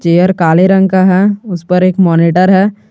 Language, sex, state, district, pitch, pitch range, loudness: Hindi, male, Jharkhand, Garhwa, 185 Hz, 175-190 Hz, -9 LUFS